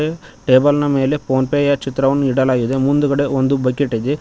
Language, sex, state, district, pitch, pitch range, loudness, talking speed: Kannada, male, Karnataka, Koppal, 135 Hz, 130-145 Hz, -16 LUFS, 145 wpm